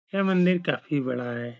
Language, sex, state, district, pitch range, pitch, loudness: Hindi, male, Uttar Pradesh, Etah, 120-180 Hz, 145 Hz, -26 LUFS